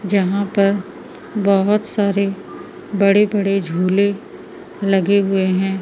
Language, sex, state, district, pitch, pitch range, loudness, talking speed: Hindi, female, Madhya Pradesh, Umaria, 200 Hz, 195-205 Hz, -17 LUFS, 105 wpm